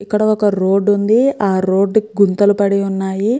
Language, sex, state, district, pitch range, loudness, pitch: Telugu, female, Andhra Pradesh, Chittoor, 195-210 Hz, -15 LUFS, 205 Hz